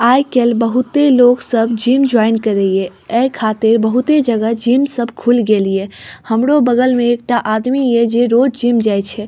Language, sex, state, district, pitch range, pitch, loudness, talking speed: Maithili, female, Bihar, Saharsa, 220-250 Hz, 235 Hz, -13 LUFS, 175 wpm